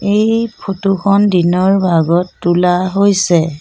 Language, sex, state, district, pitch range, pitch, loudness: Assamese, female, Assam, Sonitpur, 175-200 Hz, 190 Hz, -13 LUFS